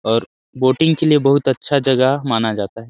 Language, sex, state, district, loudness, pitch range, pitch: Hindi, male, Chhattisgarh, Sarguja, -16 LUFS, 115-140 Hz, 130 Hz